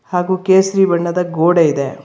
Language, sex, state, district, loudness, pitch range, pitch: Kannada, female, Karnataka, Bangalore, -14 LUFS, 160-185 Hz, 175 Hz